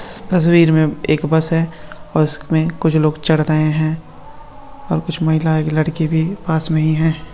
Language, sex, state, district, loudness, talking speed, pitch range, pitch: Hindi, male, Andhra Pradesh, Visakhapatnam, -16 LUFS, 105 wpm, 155-165 Hz, 160 Hz